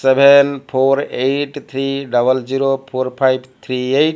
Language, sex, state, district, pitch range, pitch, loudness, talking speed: English, male, Odisha, Malkangiri, 130-140 Hz, 135 Hz, -16 LUFS, 145 wpm